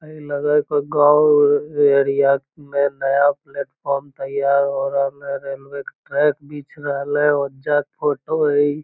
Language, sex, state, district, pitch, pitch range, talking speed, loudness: Magahi, female, Bihar, Lakhisarai, 145 Hz, 140-145 Hz, 150 wpm, -19 LUFS